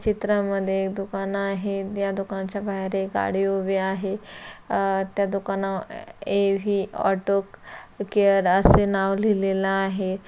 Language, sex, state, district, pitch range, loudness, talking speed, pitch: Marathi, female, Maharashtra, Solapur, 195-200 Hz, -24 LUFS, 130 wpm, 195 Hz